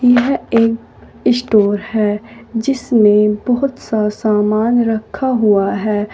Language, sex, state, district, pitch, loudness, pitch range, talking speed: Hindi, female, Uttar Pradesh, Saharanpur, 220 Hz, -15 LUFS, 210-245 Hz, 105 wpm